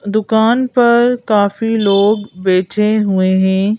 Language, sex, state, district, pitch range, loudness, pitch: Hindi, female, Madhya Pradesh, Bhopal, 195-225 Hz, -13 LUFS, 210 Hz